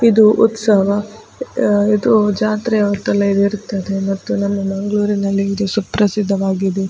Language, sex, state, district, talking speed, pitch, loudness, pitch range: Kannada, female, Karnataka, Dakshina Kannada, 105 wpm, 205 Hz, -16 LUFS, 195-215 Hz